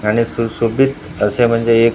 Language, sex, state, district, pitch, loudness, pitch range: Marathi, male, Maharashtra, Gondia, 115 Hz, -16 LUFS, 115-120 Hz